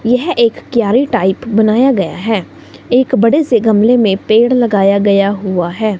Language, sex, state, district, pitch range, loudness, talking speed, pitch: Hindi, female, Himachal Pradesh, Shimla, 200-245 Hz, -12 LUFS, 170 wpm, 220 Hz